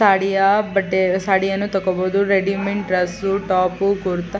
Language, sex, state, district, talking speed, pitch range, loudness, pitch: Kannada, female, Karnataka, Chamarajanagar, 110 wpm, 185-200 Hz, -19 LUFS, 195 Hz